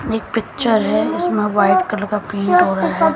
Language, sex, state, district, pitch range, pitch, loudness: Hindi, female, Haryana, Jhajjar, 195-225 Hz, 210 Hz, -17 LUFS